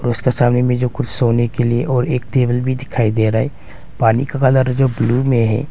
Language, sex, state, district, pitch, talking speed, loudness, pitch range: Hindi, male, Arunachal Pradesh, Longding, 125 Hz, 240 wpm, -16 LUFS, 120-130 Hz